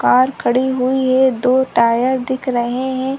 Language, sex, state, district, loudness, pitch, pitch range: Hindi, female, Chhattisgarh, Sarguja, -16 LUFS, 255 Hz, 245-260 Hz